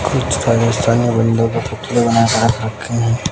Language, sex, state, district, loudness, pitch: Hindi, male, Bihar, West Champaran, -15 LUFS, 115 Hz